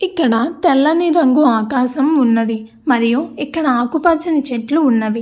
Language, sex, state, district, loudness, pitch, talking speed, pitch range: Telugu, female, Andhra Pradesh, Anantapur, -15 LUFS, 275 Hz, 115 wpm, 235-320 Hz